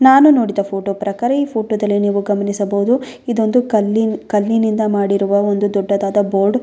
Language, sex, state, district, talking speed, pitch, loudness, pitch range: Kannada, female, Karnataka, Bellary, 145 wpm, 205 Hz, -16 LUFS, 200-225 Hz